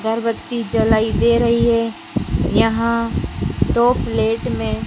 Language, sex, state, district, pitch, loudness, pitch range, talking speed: Hindi, female, Madhya Pradesh, Dhar, 230 Hz, -18 LUFS, 220-235 Hz, 110 wpm